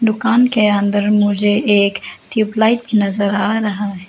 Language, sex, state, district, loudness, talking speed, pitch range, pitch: Hindi, female, Arunachal Pradesh, Lower Dibang Valley, -15 LUFS, 145 wpm, 205-220 Hz, 210 Hz